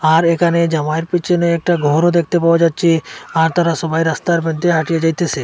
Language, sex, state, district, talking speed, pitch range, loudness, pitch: Bengali, male, Assam, Hailakandi, 175 wpm, 160-170 Hz, -15 LUFS, 165 Hz